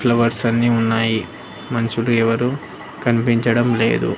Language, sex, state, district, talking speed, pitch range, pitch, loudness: Telugu, male, Andhra Pradesh, Annamaya, 100 wpm, 115-120 Hz, 115 Hz, -18 LUFS